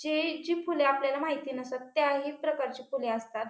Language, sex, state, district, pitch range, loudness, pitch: Marathi, female, Maharashtra, Pune, 260-310 Hz, -31 LUFS, 280 Hz